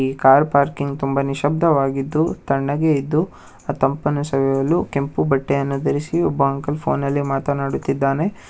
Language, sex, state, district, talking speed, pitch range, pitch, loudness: Kannada, male, Karnataka, Bangalore, 115 wpm, 135-150 Hz, 140 Hz, -19 LUFS